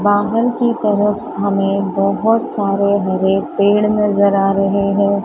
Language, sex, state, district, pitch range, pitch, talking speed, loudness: Hindi, male, Maharashtra, Mumbai Suburban, 195-210 Hz, 200 Hz, 135 wpm, -15 LUFS